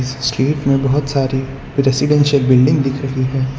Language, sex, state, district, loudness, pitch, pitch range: Hindi, male, Gujarat, Valsad, -15 LUFS, 135 Hz, 130-140 Hz